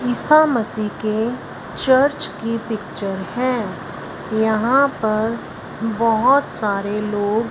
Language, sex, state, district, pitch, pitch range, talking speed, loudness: Hindi, female, Punjab, Fazilka, 225 Hz, 215-250 Hz, 105 wpm, -19 LUFS